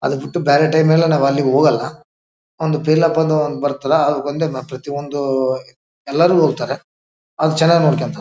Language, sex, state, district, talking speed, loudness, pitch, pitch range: Kannada, male, Karnataka, Bellary, 140 wpm, -16 LUFS, 145 Hz, 135-160 Hz